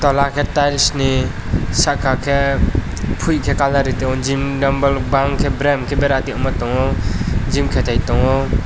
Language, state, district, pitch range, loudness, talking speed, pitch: Kokborok, Tripura, West Tripura, 130-140 Hz, -17 LUFS, 145 wpm, 135 Hz